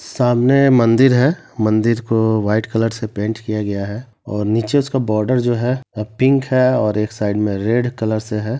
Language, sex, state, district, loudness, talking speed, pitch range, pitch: Hindi, male, Bihar, Samastipur, -17 LUFS, 195 wpm, 105-125 Hz, 115 Hz